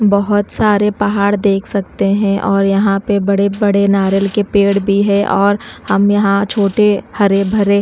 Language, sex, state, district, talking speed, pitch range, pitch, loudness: Hindi, female, Odisha, Nuapada, 170 wpm, 200-205 Hz, 200 Hz, -13 LUFS